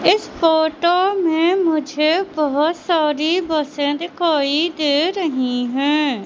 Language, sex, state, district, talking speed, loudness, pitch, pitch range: Hindi, male, Madhya Pradesh, Katni, 105 wpm, -18 LUFS, 315 Hz, 295-345 Hz